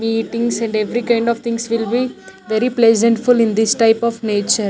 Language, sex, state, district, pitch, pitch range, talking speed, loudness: English, female, Chandigarh, Chandigarh, 230 Hz, 220-235 Hz, 190 wpm, -16 LUFS